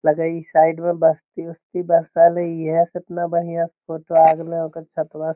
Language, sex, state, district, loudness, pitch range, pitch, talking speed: Magahi, male, Bihar, Lakhisarai, -19 LUFS, 160-170 Hz, 165 Hz, 200 wpm